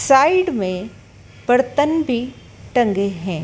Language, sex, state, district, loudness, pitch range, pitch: Hindi, female, Madhya Pradesh, Dhar, -18 LUFS, 195-275 Hz, 245 Hz